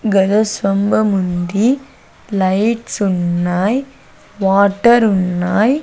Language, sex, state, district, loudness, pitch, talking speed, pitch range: Telugu, female, Andhra Pradesh, Sri Satya Sai, -15 LUFS, 200 Hz, 50 wpm, 190-225 Hz